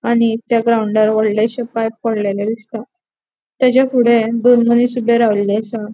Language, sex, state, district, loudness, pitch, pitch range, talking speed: Konkani, female, Goa, North and South Goa, -15 LUFS, 230 Hz, 220-240 Hz, 140 wpm